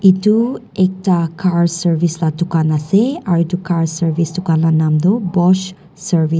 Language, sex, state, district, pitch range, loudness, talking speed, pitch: Nagamese, female, Nagaland, Dimapur, 165-185 Hz, -15 LUFS, 170 wpm, 175 Hz